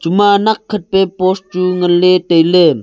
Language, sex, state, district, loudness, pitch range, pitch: Wancho, male, Arunachal Pradesh, Longding, -12 LUFS, 175-195 Hz, 185 Hz